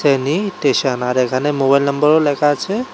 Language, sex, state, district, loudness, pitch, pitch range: Bengali, male, Tripura, West Tripura, -16 LUFS, 145 Hz, 135-150 Hz